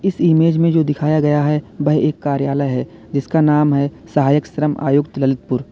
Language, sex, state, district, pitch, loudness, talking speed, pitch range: Hindi, male, Uttar Pradesh, Lalitpur, 150 Hz, -17 LUFS, 190 wpm, 140-155 Hz